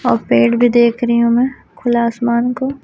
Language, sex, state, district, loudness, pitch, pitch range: Hindi, female, Chhattisgarh, Raipur, -14 LUFS, 240 Hz, 235-245 Hz